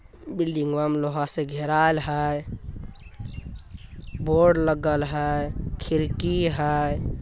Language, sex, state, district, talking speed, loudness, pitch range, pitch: Hindi, male, Bihar, Jamui, 100 wpm, -24 LUFS, 145-155 Hz, 150 Hz